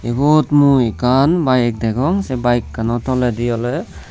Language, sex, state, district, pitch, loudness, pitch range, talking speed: Chakma, male, Tripura, Unakoti, 125 Hz, -16 LUFS, 120-135 Hz, 145 wpm